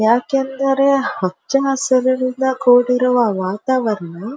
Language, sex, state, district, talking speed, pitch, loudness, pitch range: Kannada, female, Karnataka, Dharwad, 70 wpm, 255 Hz, -17 LUFS, 225-270 Hz